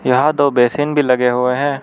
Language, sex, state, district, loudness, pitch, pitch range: Hindi, male, Arunachal Pradesh, Lower Dibang Valley, -15 LUFS, 135 Hz, 125-145 Hz